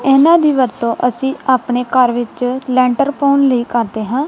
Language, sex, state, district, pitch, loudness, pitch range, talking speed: Punjabi, female, Punjab, Kapurthala, 255 Hz, -14 LUFS, 240-275 Hz, 170 wpm